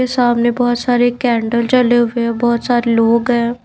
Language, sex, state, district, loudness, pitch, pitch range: Hindi, female, Maharashtra, Mumbai Suburban, -14 LUFS, 240 Hz, 235-245 Hz